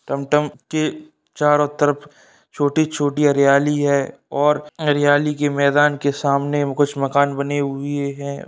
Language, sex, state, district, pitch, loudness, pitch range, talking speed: Hindi, male, Bihar, Saharsa, 145 Hz, -19 LUFS, 140-150 Hz, 140 wpm